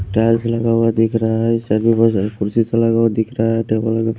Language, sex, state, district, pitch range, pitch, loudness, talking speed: Hindi, male, Himachal Pradesh, Shimla, 110-115 Hz, 115 Hz, -16 LUFS, 230 wpm